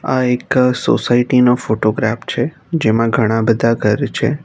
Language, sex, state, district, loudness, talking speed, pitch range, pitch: Gujarati, male, Gujarat, Navsari, -15 LUFS, 150 wpm, 115-130 Hz, 125 Hz